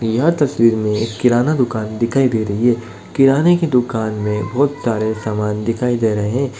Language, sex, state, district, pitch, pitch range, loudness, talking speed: Hindi, male, Bihar, Madhepura, 115 Hz, 110-130 Hz, -17 LUFS, 190 wpm